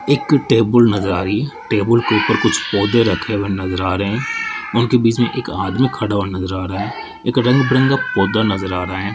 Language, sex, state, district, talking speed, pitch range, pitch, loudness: Hindi, male, Rajasthan, Jaipur, 235 wpm, 95-125 Hz, 110 Hz, -17 LUFS